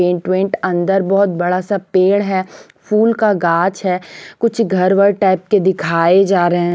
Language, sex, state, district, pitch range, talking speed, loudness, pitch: Hindi, female, Punjab, Pathankot, 180-200 Hz, 185 wpm, -15 LUFS, 190 Hz